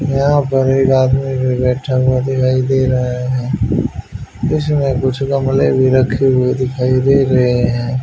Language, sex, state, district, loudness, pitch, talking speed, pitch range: Hindi, male, Haryana, Charkhi Dadri, -14 LUFS, 130 Hz, 155 wpm, 125-135 Hz